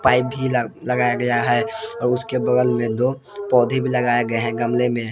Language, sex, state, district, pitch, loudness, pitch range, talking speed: Hindi, male, Jharkhand, Palamu, 125 Hz, -20 LUFS, 120-130 Hz, 200 wpm